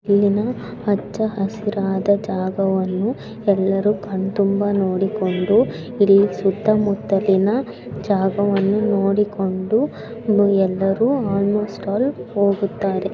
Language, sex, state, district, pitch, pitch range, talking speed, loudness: Kannada, female, Karnataka, Belgaum, 200 Hz, 195-210 Hz, 60 wpm, -19 LUFS